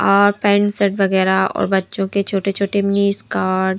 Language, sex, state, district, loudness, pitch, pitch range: Hindi, female, Himachal Pradesh, Shimla, -17 LUFS, 200 Hz, 195-200 Hz